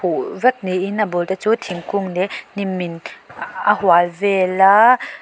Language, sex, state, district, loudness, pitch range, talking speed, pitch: Mizo, female, Mizoram, Aizawl, -17 LUFS, 185-210 Hz, 170 wpm, 190 Hz